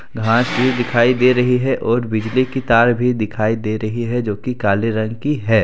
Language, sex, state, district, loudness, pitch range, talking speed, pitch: Hindi, male, Jharkhand, Deoghar, -17 LUFS, 110-125 Hz, 225 wpm, 120 Hz